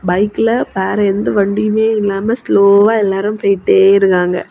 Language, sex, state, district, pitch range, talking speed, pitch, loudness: Tamil, female, Tamil Nadu, Kanyakumari, 195-215 Hz, 120 wpm, 200 Hz, -13 LUFS